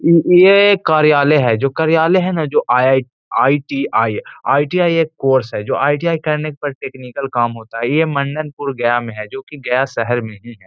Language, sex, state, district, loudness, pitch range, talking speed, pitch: Hindi, male, Bihar, Gaya, -15 LUFS, 125-160 Hz, 200 wpm, 140 Hz